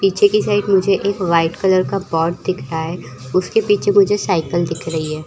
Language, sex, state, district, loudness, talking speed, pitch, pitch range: Chhattisgarhi, female, Chhattisgarh, Jashpur, -17 LUFS, 205 wpm, 185 Hz, 165-200 Hz